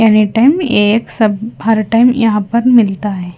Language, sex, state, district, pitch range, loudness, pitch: Hindi, female, Himachal Pradesh, Shimla, 210-235 Hz, -12 LUFS, 220 Hz